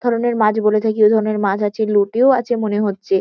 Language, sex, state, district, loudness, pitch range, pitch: Bengali, female, West Bengal, Kolkata, -16 LUFS, 210-230 Hz, 215 Hz